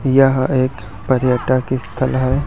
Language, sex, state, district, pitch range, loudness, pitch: Hindi, male, Chhattisgarh, Raipur, 130-135 Hz, -17 LUFS, 130 Hz